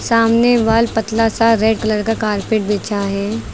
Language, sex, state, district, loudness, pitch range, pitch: Hindi, female, Uttar Pradesh, Lucknow, -16 LUFS, 210-230 Hz, 220 Hz